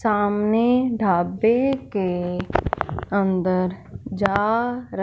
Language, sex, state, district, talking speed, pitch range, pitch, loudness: Hindi, female, Punjab, Fazilka, 60 wpm, 185-235 Hz, 205 Hz, -22 LUFS